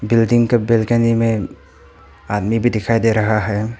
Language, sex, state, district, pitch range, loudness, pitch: Hindi, male, Arunachal Pradesh, Papum Pare, 110-115 Hz, -16 LUFS, 115 Hz